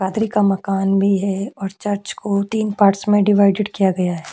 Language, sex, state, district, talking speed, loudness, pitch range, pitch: Hindi, female, Chhattisgarh, Korba, 210 wpm, -18 LUFS, 195-205 Hz, 200 Hz